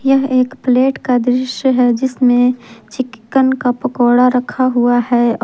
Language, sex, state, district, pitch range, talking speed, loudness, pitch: Hindi, female, Jharkhand, Ranchi, 245-260 Hz, 130 wpm, -14 LUFS, 250 Hz